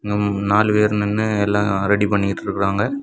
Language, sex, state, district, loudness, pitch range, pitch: Tamil, male, Tamil Nadu, Kanyakumari, -19 LUFS, 100-105 Hz, 105 Hz